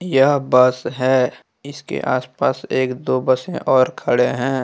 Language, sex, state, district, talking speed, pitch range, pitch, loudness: Hindi, male, Jharkhand, Deoghar, 155 wpm, 125-140 Hz, 130 Hz, -18 LUFS